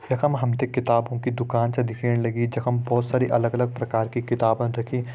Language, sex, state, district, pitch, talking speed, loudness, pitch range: Hindi, male, Uttarakhand, Uttarkashi, 120 Hz, 210 wpm, -24 LUFS, 115-125 Hz